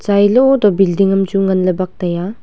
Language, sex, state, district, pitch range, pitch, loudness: Wancho, female, Arunachal Pradesh, Longding, 185-205 Hz, 195 Hz, -13 LUFS